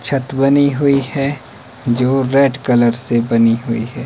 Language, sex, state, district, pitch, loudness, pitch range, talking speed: Hindi, male, Himachal Pradesh, Shimla, 130 Hz, -15 LUFS, 120-140 Hz, 165 wpm